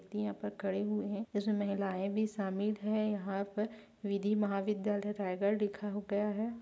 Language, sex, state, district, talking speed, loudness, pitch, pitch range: Hindi, female, Chhattisgarh, Raigarh, 170 wpm, -36 LUFS, 205 Hz, 200-210 Hz